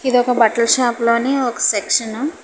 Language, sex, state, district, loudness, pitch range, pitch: Telugu, female, Telangana, Hyderabad, -16 LUFS, 235-255 Hz, 240 Hz